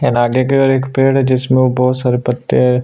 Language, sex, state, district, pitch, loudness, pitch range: Hindi, male, Chhattisgarh, Sukma, 130 Hz, -13 LUFS, 125-135 Hz